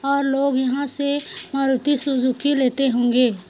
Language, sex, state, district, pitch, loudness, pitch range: Hindi, female, Chhattisgarh, Korba, 275 Hz, -20 LUFS, 255-280 Hz